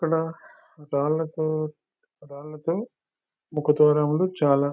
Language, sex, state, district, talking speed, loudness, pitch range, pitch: Telugu, male, Telangana, Nalgonda, 75 wpm, -24 LUFS, 150-165 Hz, 155 Hz